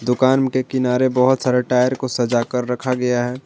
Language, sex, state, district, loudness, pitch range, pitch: Hindi, male, Jharkhand, Garhwa, -18 LUFS, 125-130 Hz, 125 Hz